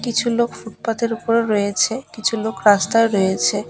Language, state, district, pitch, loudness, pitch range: Bengali, West Bengal, Alipurduar, 225 Hz, -19 LUFS, 205-230 Hz